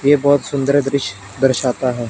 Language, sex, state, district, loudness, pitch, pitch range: Hindi, male, Punjab, Fazilka, -17 LUFS, 135 Hz, 125-140 Hz